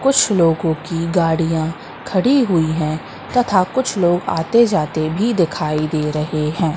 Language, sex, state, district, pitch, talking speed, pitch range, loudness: Hindi, female, Madhya Pradesh, Katni, 165 Hz, 150 wpm, 155-195 Hz, -17 LUFS